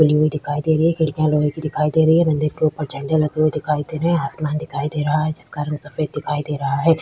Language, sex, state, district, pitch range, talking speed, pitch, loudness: Hindi, female, Chhattisgarh, Kabirdham, 150-155 Hz, 300 wpm, 155 Hz, -20 LUFS